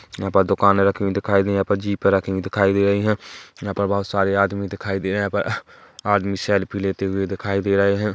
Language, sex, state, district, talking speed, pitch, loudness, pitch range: Hindi, male, Chhattisgarh, Kabirdham, 265 wpm, 100 Hz, -21 LUFS, 95-100 Hz